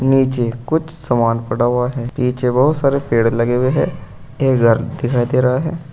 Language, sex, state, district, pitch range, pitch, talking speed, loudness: Hindi, male, Uttar Pradesh, Saharanpur, 120-140 Hz, 125 Hz, 190 wpm, -17 LUFS